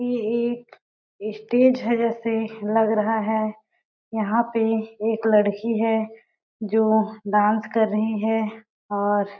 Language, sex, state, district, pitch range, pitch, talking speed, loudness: Hindi, female, Chhattisgarh, Balrampur, 215-225 Hz, 220 Hz, 120 wpm, -22 LUFS